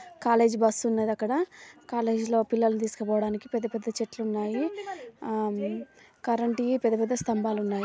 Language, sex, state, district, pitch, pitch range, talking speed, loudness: Telugu, female, Andhra Pradesh, Guntur, 225 Hz, 220-240 Hz, 145 wpm, -28 LUFS